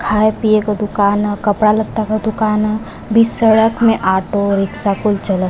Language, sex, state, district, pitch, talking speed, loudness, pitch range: Bhojpuri, female, Uttar Pradesh, Varanasi, 210 Hz, 185 wpm, -15 LUFS, 200-220 Hz